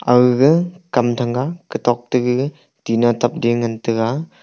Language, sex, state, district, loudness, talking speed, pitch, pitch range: Wancho, male, Arunachal Pradesh, Longding, -18 LUFS, 150 wpm, 125 Hz, 120-145 Hz